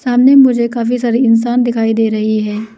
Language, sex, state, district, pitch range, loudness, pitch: Hindi, female, Arunachal Pradesh, Lower Dibang Valley, 225-245 Hz, -12 LUFS, 235 Hz